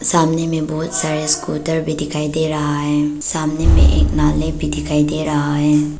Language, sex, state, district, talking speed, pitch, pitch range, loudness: Hindi, female, Arunachal Pradesh, Papum Pare, 190 wpm, 150 Hz, 145-155 Hz, -17 LUFS